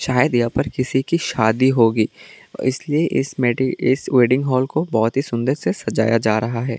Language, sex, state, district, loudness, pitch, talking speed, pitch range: Hindi, male, Tripura, West Tripura, -19 LUFS, 125 Hz, 195 wpm, 115-135 Hz